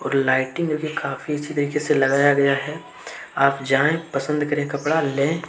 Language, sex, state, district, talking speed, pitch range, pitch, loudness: Hindi, male, Jharkhand, Deoghar, 165 wpm, 140-150 Hz, 145 Hz, -21 LUFS